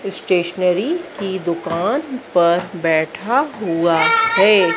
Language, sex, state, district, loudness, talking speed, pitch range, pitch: Hindi, female, Madhya Pradesh, Dhar, -17 LUFS, 90 wpm, 170-255 Hz, 185 Hz